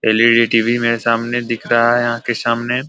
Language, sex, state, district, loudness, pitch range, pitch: Hindi, male, Bihar, Saran, -15 LUFS, 115-120 Hz, 115 Hz